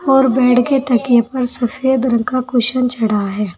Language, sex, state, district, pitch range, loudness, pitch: Hindi, female, Uttar Pradesh, Saharanpur, 235-260 Hz, -15 LUFS, 245 Hz